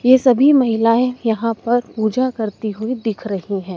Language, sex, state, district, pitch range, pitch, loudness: Hindi, female, Madhya Pradesh, Dhar, 220-250 Hz, 230 Hz, -17 LUFS